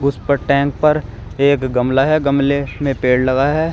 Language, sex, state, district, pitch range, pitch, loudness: Hindi, male, Uttar Pradesh, Shamli, 130-140 Hz, 140 Hz, -16 LUFS